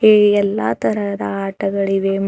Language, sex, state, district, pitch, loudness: Kannada, female, Karnataka, Bidar, 195 Hz, -17 LUFS